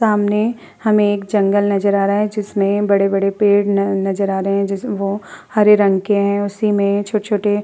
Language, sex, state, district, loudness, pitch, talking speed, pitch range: Hindi, female, Uttar Pradesh, Hamirpur, -16 LUFS, 205 Hz, 205 wpm, 200-210 Hz